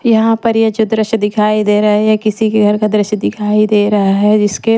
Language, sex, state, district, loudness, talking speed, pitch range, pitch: Hindi, female, Maharashtra, Washim, -12 LUFS, 250 wpm, 210-220 Hz, 215 Hz